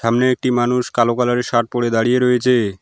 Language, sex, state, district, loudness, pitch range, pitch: Bengali, male, West Bengal, Alipurduar, -17 LUFS, 120-125 Hz, 120 Hz